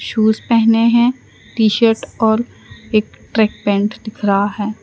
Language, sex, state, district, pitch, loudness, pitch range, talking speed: Hindi, female, Gujarat, Valsad, 220 Hz, -16 LUFS, 210-230 Hz, 150 wpm